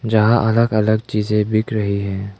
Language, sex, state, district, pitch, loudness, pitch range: Hindi, male, Arunachal Pradesh, Lower Dibang Valley, 110 Hz, -17 LUFS, 105-110 Hz